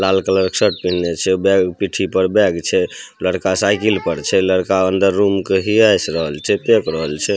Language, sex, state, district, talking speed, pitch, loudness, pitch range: Maithili, male, Bihar, Samastipur, 180 wpm, 95 Hz, -16 LUFS, 95-100 Hz